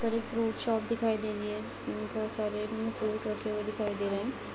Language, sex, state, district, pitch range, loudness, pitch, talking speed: Hindi, female, Uttar Pradesh, Etah, 210-225 Hz, -33 LUFS, 215 Hz, 225 wpm